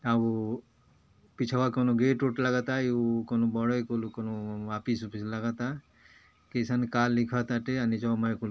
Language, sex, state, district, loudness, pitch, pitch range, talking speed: Bhojpuri, male, Uttar Pradesh, Ghazipur, -30 LUFS, 115 Hz, 110-125 Hz, 150 wpm